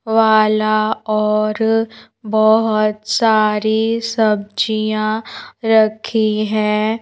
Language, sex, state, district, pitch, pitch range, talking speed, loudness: Hindi, female, Madhya Pradesh, Bhopal, 215 Hz, 215-220 Hz, 60 wpm, -16 LUFS